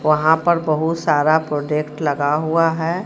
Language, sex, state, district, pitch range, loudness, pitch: Hindi, female, Jharkhand, Ranchi, 150-165 Hz, -18 LUFS, 155 Hz